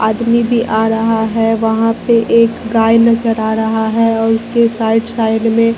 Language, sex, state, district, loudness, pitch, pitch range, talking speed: Hindi, female, Bihar, Katihar, -13 LUFS, 225 Hz, 225-230 Hz, 185 wpm